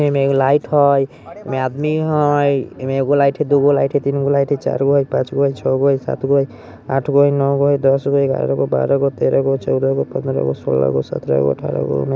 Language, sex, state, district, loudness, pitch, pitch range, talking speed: Bajjika, male, Bihar, Vaishali, -17 LUFS, 135 Hz, 115-140 Hz, 280 wpm